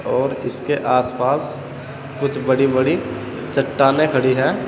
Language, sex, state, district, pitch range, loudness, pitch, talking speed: Hindi, male, Uttar Pradesh, Saharanpur, 130-140 Hz, -19 LUFS, 135 Hz, 115 wpm